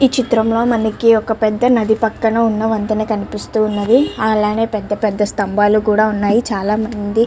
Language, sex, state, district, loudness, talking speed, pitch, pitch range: Telugu, female, Andhra Pradesh, Chittoor, -15 LUFS, 165 wpm, 220 Hz, 210-225 Hz